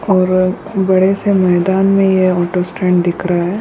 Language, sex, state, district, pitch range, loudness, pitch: Hindi, female, Bihar, Kishanganj, 180-195 Hz, -13 LUFS, 185 Hz